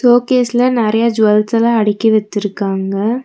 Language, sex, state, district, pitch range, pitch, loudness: Tamil, female, Tamil Nadu, Nilgiris, 210-240 Hz, 220 Hz, -14 LUFS